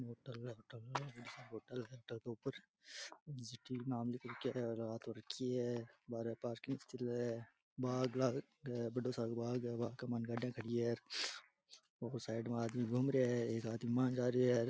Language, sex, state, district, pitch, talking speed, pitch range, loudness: Rajasthani, male, Rajasthan, Churu, 120 Hz, 165 wpm, 115-125 Hz, -42 LUFS